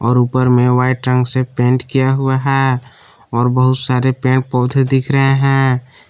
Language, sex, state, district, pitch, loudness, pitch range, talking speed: Hindi, male, Jharkhand, Palamu, 130 Hz, -14 LUFS, 125-135 Hz, 175 wpm